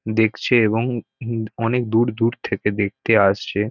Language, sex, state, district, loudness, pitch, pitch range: Bengali, male, West Bengal, North 24 Parganas, -20 LUFS, 110 Hz, 105-115 Hz